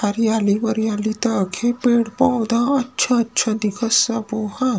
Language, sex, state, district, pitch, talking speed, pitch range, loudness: Chhattisgarhi, male, Chhattisgarh, Rajnandgaon, 225 Hz, 100 wpm, 215-240 Hz, -19 LUFS